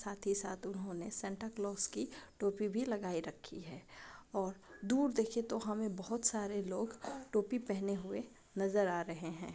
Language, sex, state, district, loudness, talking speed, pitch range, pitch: Hindi, female, Chhattisgarh, Raigarh, -39 LUFS, 170 wpm, 195-225 Hz, 200 Hz